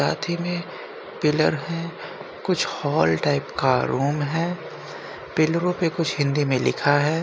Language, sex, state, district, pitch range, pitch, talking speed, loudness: Hindi, male, Uttar Pradesh, Jyotiba Phule Nagar, 145-175 Hz, 165 Hz, 140 wpm, -23 LUFS